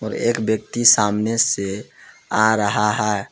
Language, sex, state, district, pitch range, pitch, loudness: Hindi, male, Jharkhand, Palamu, 105-115 Hz, 105 Hz, -18 LUFS